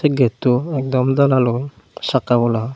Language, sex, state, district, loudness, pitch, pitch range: Chakma, male, Tripura, Unakoti, -17 LUFS, 130 Hz, 120-135 Hz